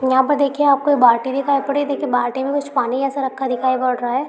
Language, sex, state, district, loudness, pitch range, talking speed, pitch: Hindi, female, Uttar Pradesh, Hamirpur, -18 LUFS, 255-280 Hz, 265 wpm, 265 Hz